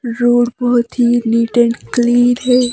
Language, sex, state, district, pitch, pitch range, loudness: Hindi, female, Himachal Pradesh, Shimla, 240 Hz, 240-245 Hz, -14 LUFS